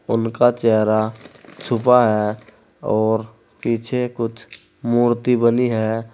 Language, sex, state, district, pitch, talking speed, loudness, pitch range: Hindi, male, Uttar Pradesh, Saharanpur, 115 Hz, 100 wpm, -19 LUFS, 110-120 Hz